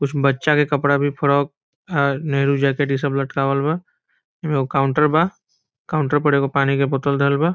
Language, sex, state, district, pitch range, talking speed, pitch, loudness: Hindi, male, Bihar, Saran, 140-150 Hz, 190 wpm, 140 Hz, -19 LUFS